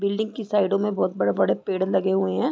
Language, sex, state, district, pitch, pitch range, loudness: Hindi, female, Chhattisgarh, Raigarh, 200 Hz, 190-215 Hz, -23 LUFS